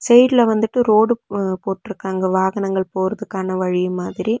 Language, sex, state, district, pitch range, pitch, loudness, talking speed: Tamil, female, Tamil Nadu, Nilgiris, 190-220 Hz, 195 Hz, -18 LUFS, 110 wpm